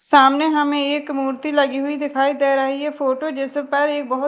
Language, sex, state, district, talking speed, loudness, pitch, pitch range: Hindi, female, Madhya Pradesh, Dhar, 210 wpm, -19 LUFS, 285 Hz, 270-295 Hz